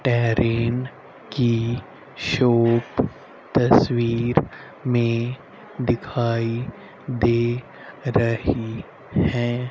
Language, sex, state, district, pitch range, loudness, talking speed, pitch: Hindi, male, Haryana, Rohtak, 115-125 Hz, -22 LUFS, 55 wpm, 120 Hz